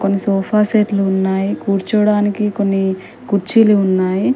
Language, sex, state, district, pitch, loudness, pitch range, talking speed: Telugu, female, Telangana, Mahabubabad, 200 Hz, -15 LUFS, 195-210 Hz, 85 wpm